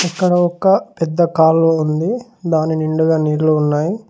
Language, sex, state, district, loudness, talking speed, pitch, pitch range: Telugu, male, Telangana, Mahabubabad, -15 LUFS, 130 wpm, 165 Hz, 155-175 Hz